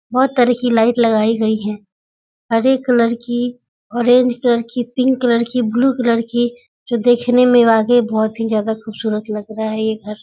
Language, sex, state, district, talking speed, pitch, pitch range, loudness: Hindi, female, Bihar, Muzaffarpur, 190 wpm, 235 Hz, 220-245 Hz, -16 LUFS